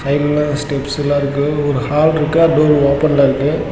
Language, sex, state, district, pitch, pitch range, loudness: Tamil, male, Tamil Nadu, Namakkal, 145 Hz, 140-150 Hz, -14 LUFS